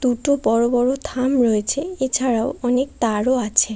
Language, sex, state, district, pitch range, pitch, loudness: Bengali, female, West Bengal, Kolkata, 235-265 Hz, 250 Hz, -19 LUFS